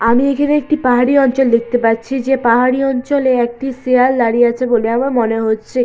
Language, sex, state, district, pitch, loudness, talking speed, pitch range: Bengali, female, West Bengal, Jalpaiguri, 250 Hz, -14 LUFS, 185 wpm, 235-270 Hz